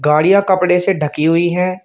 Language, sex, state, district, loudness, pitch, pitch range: Hindi, male, Uttar Pradesh, Shamli, -14 LUFS, 180 Hz, 155-185 Hz